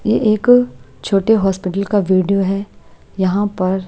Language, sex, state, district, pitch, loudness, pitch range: Hindi, female, Punjab, Pathankot, 195 Hz, -16 LUFS, 185-210 Hz